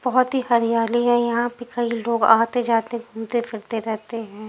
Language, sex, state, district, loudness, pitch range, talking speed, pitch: Hindi, female, Punjab, Pathankot, -21 LUFS, 225-240 Hz, 175 wpm, 235 Hz